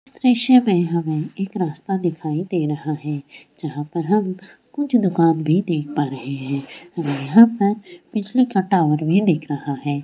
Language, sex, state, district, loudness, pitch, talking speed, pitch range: Hindi, female, Jharkhand, Sahebganj, -20 LUFS, 170 Hz, 175 wpm, 150-195 Hz